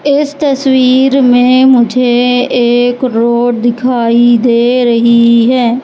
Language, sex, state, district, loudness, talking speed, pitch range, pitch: Hindi, female, Madhya Pradesh, Katni, -9 LUFS, 105 wpm, 235-255 Hz, 245 Hz